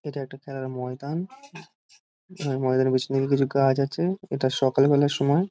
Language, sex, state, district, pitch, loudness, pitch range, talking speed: Bengali, male, West Bengal, Dakshin Dinajpur, 135 Hz, -25 LUFS, 130-150 Hz, 150 wpm